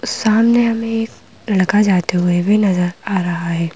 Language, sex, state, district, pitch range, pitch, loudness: Hindi, female, Madhya Pradesh, Bhopal, 180-225 Hz, 200 Hz, -16 LUFS